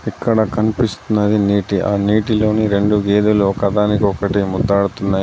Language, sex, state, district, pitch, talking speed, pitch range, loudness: Telugu, male, Telangana, Adilabad, 105 Hz, 115 wpm, 100-105 Hz, -16 LUFS